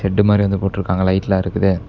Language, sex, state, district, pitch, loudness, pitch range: Tamil, male, Tamil Nadu, Namakkal, 95 Hz, -17 LUFS, 95-100 Hz